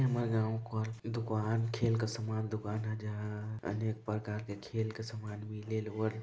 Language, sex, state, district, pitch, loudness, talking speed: Hindi, male, Chhattisgarh, Balrampur, 110 Hz, -37 LUFS, 185 wpm